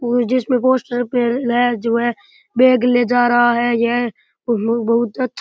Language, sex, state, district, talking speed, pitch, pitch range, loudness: Rajasthani, male, Rajasthan, Churu, 180 wpm, 240 Hz, 235-250 Hz, -17 LUFS